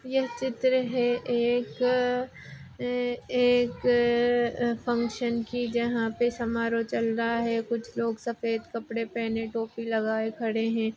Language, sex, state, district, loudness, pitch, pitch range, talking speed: Hindi, female, Maharashtra, Nagpur, -27 LUFS, 235 Hz, 230-245 Hz, 125 wpm